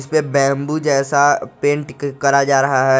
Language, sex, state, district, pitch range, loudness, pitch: Hindi, male, Jharkhand, Garhwa, 135-145 Hz, -16 LUFS, 140 Hz